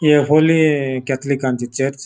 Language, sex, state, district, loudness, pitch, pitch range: Konkani, male, Goa, North and South Goa, -16 LUFS, 140 Hz, 135-150 Hz